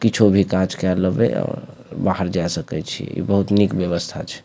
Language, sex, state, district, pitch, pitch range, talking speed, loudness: Maithili, male, Bihar, Supaul, 95 Hz, 90-100 Hz, 190 wpm, -20 LUFS